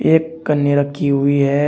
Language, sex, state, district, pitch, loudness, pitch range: Hindi, male, Uttar Pradesh, Shamli, 145 Hz, -16 LUFS, 140-150 Hz